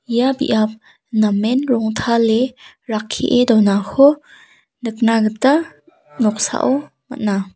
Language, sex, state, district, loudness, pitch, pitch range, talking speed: Garo, female, Meghalaya, South Garo Hills, -17 LUFS, 230 Hz, 215-265 Hz, 80 wpm